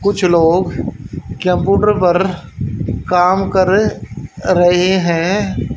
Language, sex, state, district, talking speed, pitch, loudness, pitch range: Hindi, female, Haryana, Charkhi Dadri, 85 wpm, 180 Hz, -14 LUFS, 170-190 Hz